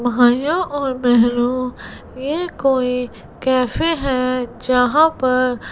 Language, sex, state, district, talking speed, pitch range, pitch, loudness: Hindi, female, Gujarat, Gandhinagar, 95 wpm, 245-275 Hz, 255 Hz, -18 LUFS